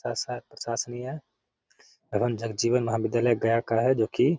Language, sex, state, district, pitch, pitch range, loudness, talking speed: Hindi, male, Bihar, Gaya, 115 Hz, 115-120 Hz, -27 LUFS, 125 wpm